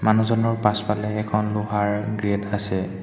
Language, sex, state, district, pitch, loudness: Assamese, male, Assam, Hailakandi, 105 Hz, -23 LUFS